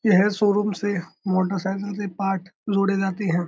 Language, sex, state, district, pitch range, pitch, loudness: Hindi, male, Uttar Pradesh, Budaun, 190-205 Hz, 195 Hz, -23 LUFS